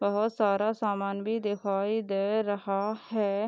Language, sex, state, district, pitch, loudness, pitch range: Hindi, female, Bihar, Darbhanga, 205 Hz, -29 LUFS, 200-215 Hz